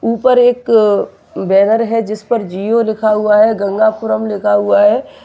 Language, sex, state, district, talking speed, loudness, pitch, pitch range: Hindi, male, West Bengal, Dakshin Dinajpur, 160 wpm, -13 LUFS, 220 Hz, 205-230 Hz